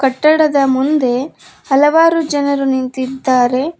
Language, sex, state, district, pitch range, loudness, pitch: Kannada, female, Karnataka, Koppal, 260-305 Hz, -14 LUFS, 275 Hz